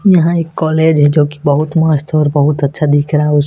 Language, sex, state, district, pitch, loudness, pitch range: Hindi, male, Chhattisgarh, Raipur, 150 Hz, -12 LUFS, 145-160 Hz